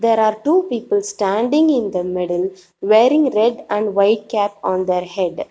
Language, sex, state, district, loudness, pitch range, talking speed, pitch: English, female, Telangana, Hyderabad, -17 LUFS, 185-230 Hz, 175 wpm, 210 Hz